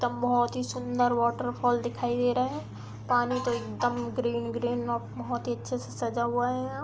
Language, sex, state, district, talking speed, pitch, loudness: Hindi, female, Uttar Pradesh, Hamirpur, 195 wpm, 235 Hz, -29 LUFS